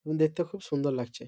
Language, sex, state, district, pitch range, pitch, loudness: Bengali, male, West Bengal, Malda, 140-175 Hz, 155 Hz, -30 LUFS